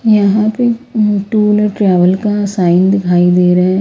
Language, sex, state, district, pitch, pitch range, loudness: Hindi, female, Haryana, Rohtak, 200 Hz, 180-215 Hz, -12 LUFS